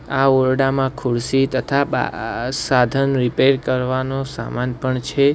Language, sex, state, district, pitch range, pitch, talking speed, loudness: Gujarati, male, Gujarat, Valsad, 125-135 Hz, 130 Hz, 125 wpm, -19 LUFS